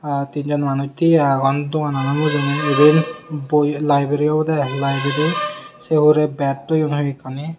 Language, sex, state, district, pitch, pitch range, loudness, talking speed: Chakma, male, Tripura, Unakoti, 145 Hz, 140-155 Hz, -18 LUFS, 135 wpm